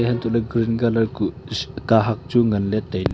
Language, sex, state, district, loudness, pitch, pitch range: Wancho, male, Arunachal Pradesh, Longding, -21 LUFS, 115 Hz, 110-120 Hz